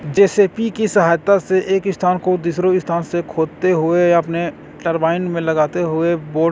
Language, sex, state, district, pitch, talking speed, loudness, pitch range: Hindi, male, Chhattisgarh, Korba, 175 Hz, 195 wpm, -17 LUFS, 165-185 Hz